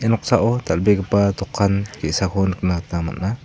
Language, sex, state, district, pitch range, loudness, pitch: Garo, male, Meghalaya, South Garo Hills, 90-105 Hz, -20 LUFS, 100 Hz